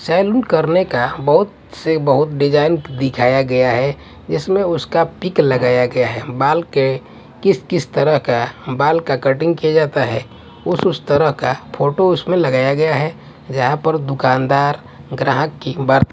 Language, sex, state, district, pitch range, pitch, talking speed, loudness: Hindi, male, Punjab, Kapurthala, 130-160 Hz, 140 Hz, 155 wpm, -16 LUFS